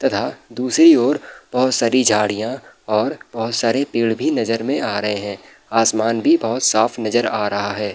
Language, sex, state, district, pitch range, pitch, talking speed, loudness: Hindi, male, Bihar, Saharsa, 105-125 Hz, 115 Hz, 180 wpm, -18 LUFS